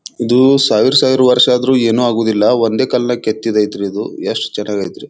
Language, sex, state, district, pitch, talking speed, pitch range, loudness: Kannada, male, Karnataka, Bijapur, 120 Hz, 175 wpm, 105-125 Hz, -13 LUFS